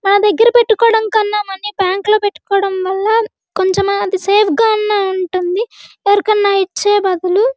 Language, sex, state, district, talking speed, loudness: Telugu, female, Andhra Pradesh, Guntur, 140 wpm, -14 LUFS